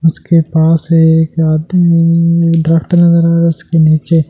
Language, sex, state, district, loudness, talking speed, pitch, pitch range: Hindi, male, Delhi, New Delhi, -10 LUFS, 210 wpm, 165 Hz, 160-170 Hz